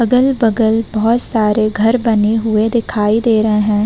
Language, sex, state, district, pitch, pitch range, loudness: Hindi, female, Uttar Pradesh, Varanasi, 220 Hz, 215-230 Hz, -13 LUFS